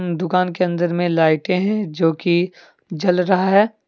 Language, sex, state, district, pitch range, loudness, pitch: Hindi, male, Jharkhand, Deoghar, 175-185 Hz, -18 LUFS, 180 Hz